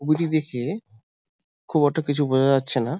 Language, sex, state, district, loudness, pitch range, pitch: Bengali, male, West Bengal, Jalpaiguri, -22 LUFS, 125-155 Hz, 145 Hz